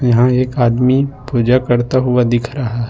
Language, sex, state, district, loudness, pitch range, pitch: Hindi, male, Jharkhand, Ranchi, -14 LUFS, 120-130 Hz, 125 Hz